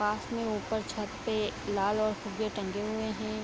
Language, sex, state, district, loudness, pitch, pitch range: Hindi, female, Bihar, Vaishali, -33 LUFS, 215 Hz, 210-220 Hz